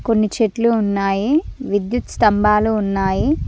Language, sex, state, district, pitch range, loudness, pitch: Telugu, female, Telangana, Mahabubabad, 205-230 Hz, -18 LUFS, 215 Hz